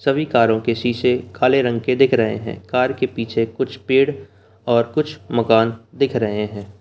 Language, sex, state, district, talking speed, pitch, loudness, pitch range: Hindi, male, Bihar, Begusarai, 185 wpm, 120 Hz, -19 LUFS, 110-130 Hz